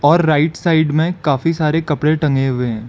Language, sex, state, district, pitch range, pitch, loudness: Hindi, male, Arunachal Pradesh, Lower Dibang Valley, 145-165 Hz, 155 Hz, -16 LUFS